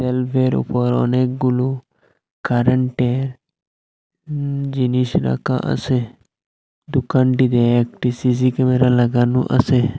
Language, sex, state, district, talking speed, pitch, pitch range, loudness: Bengali, male, Assam, Hailakandi, 85 wpm, 125 Hz, 120-130 Hz, -18 LUFS